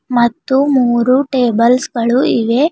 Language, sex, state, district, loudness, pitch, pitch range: Kannada, female, Karnataka, Bidar, -13 LUFS, 250 Hz, 235-270 Hz